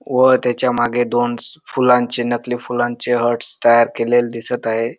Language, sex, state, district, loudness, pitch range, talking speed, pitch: Marathi, male, Maharashtra, Dhule, -17 LUFS, 120-125 Hz, 145 wpm, 120 Hz